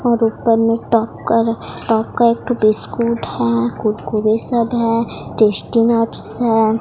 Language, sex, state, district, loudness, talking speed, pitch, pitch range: Hindi, female, Odisha, Sambalpur, -16 LUFS, 60 wpm, 230 Hz, 215-235 Hz